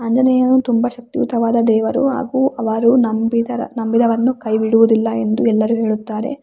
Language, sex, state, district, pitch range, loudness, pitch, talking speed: Kannada, female, Karnataka, Raichur, 225-245 Hz, -16 LUFS, 230 Hz, 120 wpm